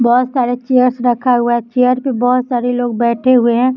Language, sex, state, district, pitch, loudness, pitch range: Hindi, female, Bihar, Samastipur, 245 Hz, -14 LUFS, 240-255 Hz